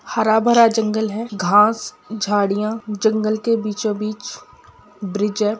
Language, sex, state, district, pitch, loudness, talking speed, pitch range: Hindi, female, Bihar, Gopalganj, 215 Hz, -19 LUFS, 120 wpm, 210-220 Hz